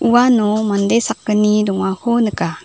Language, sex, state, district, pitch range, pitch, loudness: Garo, female, Meghalaya, South Garo Hills, 210-235 Hz, 215 Hz, -16 LUFS